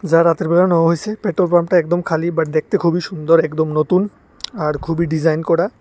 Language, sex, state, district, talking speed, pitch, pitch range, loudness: Bengali, male, Tripura, West Tripura, 185 wpm, 170 Hz, 160-180 Hz, -17 LUFS